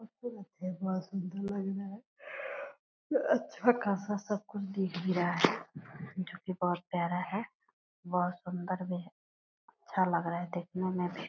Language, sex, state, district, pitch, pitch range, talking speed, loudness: Hindi, female, Bihar, Purnia, 185 Hz, 180-200 Hz, 130 wpm, -35 LUFS